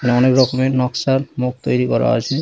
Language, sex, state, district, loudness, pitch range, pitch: Bengali, male, West Bengal, Dakshin Dinajpur, -17 LUFS, 120-130 Hz, 125 Hz